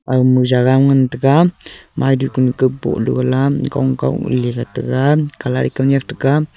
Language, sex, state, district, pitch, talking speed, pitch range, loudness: Wancho, male, Arunachal Pradesh, Longding, 130 Hz, 145 wpm, 125-140 Hz, -15 LUFS